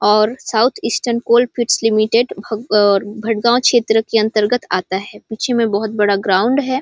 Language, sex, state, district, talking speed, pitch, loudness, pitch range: Hindi, female, Chhattisgarh, Sarguja, 150 wpm, 220 Hz, -16 LUFS, 210-240 Hz